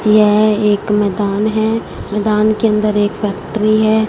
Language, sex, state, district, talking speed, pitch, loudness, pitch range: Hindi, female, Punjab, Fazilka, 145 wpm, 215 Hz, -14 LUFS, 210-215 Hz